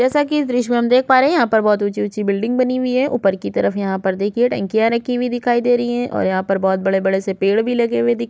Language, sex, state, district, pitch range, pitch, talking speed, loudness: Hindi, female, Chhattisgarh, Sukma, 195-245 Hz, 230 Hz, 290 wpm, -17 LUFS